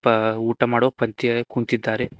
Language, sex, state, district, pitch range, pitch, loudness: Kannada, male, Karnataka, Koppal, 115-120 Hz, 120 Hz, -21 LUFS